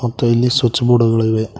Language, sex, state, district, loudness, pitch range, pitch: Kannada, male, Karnataka, Koppal, -14 LUFS, 110-120 Hz, 120 Hz